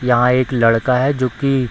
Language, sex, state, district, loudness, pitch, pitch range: Hindi, female, Bihar, Samastipur, -16 LUFS, 125 Hz, 120-130 Hz